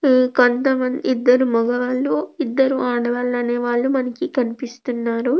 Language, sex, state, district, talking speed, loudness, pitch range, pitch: Telugu, female, Andhra Pradesh, Krishna, 100 wpm, -19 LUFS, 245-265 Hz, 255 Hz